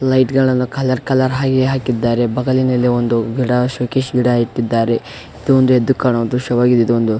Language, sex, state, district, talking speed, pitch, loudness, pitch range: Kannada, male, Karnataka, Raichur, 140 wpm, 125 Hz, -15 LUFS, 120-130 Hz